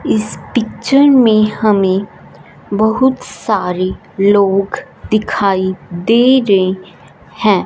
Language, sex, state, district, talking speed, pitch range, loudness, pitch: Hindi, female, Punjab, Fazilka, 85 wpm, 190-225 Hz, -13 LUFS, 205 Hz